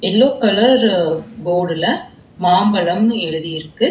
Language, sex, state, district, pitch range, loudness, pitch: Tamil, female, Tamil Nadu, Chennai, 175-235 Hz, -16 LUFS, 205 Hz